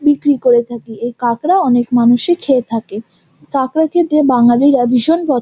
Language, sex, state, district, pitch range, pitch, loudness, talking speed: Bengali, female, West Bengal, Jhargram, 240-290 Hz, 245 Hz, -13 LUFS, 155 wpm